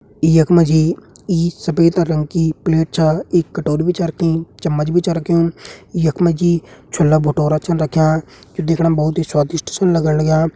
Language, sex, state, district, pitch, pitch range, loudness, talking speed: Hindi, male, Uttarakhand, Tehri Garhwal, 165 Hz, 155-170 Hz, -16 LUFS, 185 wpm